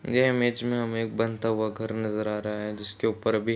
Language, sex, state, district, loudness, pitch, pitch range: Hindi, male, Uttarakhand, Uttarkashi, -28 LUFS, 110 Hz, 105-115 Hz